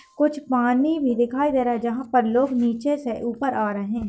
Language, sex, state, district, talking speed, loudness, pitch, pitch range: Hindi, female, Uttar Pradesh, Hamirpur, 235 wpm, -22 LUFS, 250 Hz, 235-275 Hz